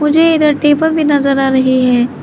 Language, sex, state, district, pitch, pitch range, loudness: Hindi, female, Arunachal Pradesh, Lower Dibang Valley, 290 Hz, 260-305 Hz, -11 LUFS